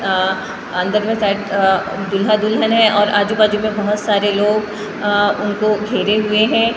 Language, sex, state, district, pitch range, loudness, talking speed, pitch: Hindi, female, Maharashtra, Gondia, 205-215 Hz, -16 LUFS, 175 wpm, 210 Hz